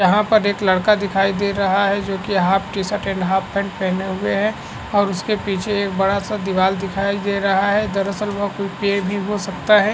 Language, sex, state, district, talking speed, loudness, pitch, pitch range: Hindi, female, Chhattisgarh, Korba, 225 wpm, -19 LUFS, 200 Hz, 195-205 Hz